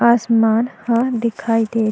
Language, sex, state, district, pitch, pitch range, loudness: Chhattisgarhi, female, Chhattisgarh, Jashpur, 230 Hz, 225-235 Hz, -17 LUFS